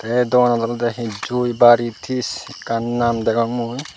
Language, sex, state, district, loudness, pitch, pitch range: Chakma, male, Tripura, Unakoti, -18 LUFS, 120 Hz, 115-125 Hz